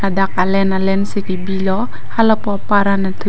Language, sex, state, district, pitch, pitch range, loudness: Karbi, female, Assam, Karbi Anglong, 195 Hz, 190-205 Hz, -17 LUFS